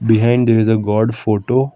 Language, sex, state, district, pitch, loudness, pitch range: English, male, Karnataka, Bangalore, 110 Hz, -15 LUFS, 110-120 Hz